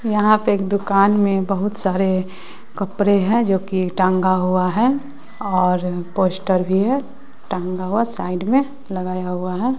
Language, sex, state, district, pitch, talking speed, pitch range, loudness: Hindi, female, Bihar, West Champaran, 195 Hz, 155 wpm, 185-215 Hz, -19 LUFS